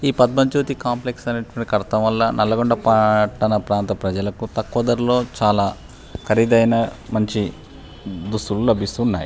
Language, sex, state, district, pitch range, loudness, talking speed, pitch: Telugu, male, Telangana, Nalgonda, 105-120 Hz, -19 LUFS, 115 wpm, 115 Hz